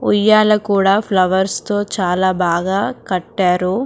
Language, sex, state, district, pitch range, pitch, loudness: Telugu, female, Telangana, Karimnagar, 185-210 Hz, 195 Hz, -16 LUFS